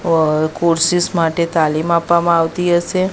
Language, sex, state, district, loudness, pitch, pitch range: Gujarati, female, Gujarat, Gandhinagar, -15 LUFS, 170 Hz, 165-175 Hz